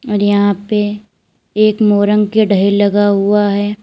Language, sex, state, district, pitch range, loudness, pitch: Hindi, female, Uttar Pradesh, Lalitpur, 205-210 Hz, -13 LUFS, 205 Hz